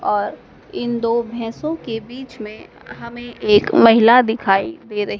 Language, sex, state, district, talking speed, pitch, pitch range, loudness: Hindi, female, Madhya Pradesh, Dhar, 150 wpm, 230 Hz, 215-240 Hz, -17 LUFS